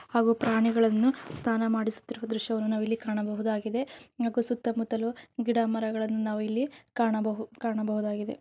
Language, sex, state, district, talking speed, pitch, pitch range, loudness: Kannada, female, Karnataka, Raichur, 115 wpm, 225 Hz, 220-235 Hz, -29 LUFS